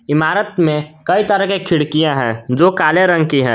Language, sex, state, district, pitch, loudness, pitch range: Hindi, male, Jharkhand, Garhwa, 155 Hz, -14 LUFS, 150-185 Hz